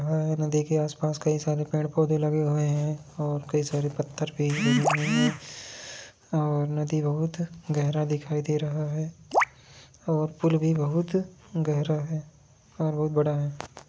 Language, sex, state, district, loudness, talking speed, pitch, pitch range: Hindi, male, Jharkhand, Jamtara, -27 LUFS, 155 wpm, 150 Hz, 150-155 Hz